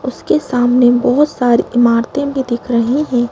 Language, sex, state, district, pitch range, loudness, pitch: Hindi, female, Madhya Pradesh, Bhopal, 240-275 Hz, -14 LUFS, 245 Hz